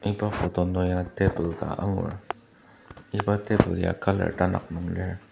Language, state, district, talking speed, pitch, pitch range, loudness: Ao, Nagaland, Dimapur, 160 wpm, 95 Hz, 90-105 Hz, -27 LUFS